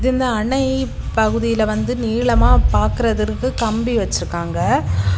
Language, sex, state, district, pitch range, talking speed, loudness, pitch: Tamil, female, Tamil Nadu, Kanyakumari, 215-250 Hz, 80 wpm, -18 LUFS, 230 Hz